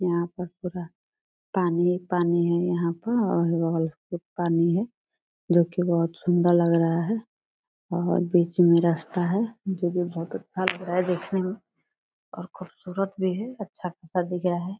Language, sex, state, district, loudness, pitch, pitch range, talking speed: Hindi, female, Bihar, Purnia, -25 LUFS, 175 Hz, 170-185 Hz, 180 wpm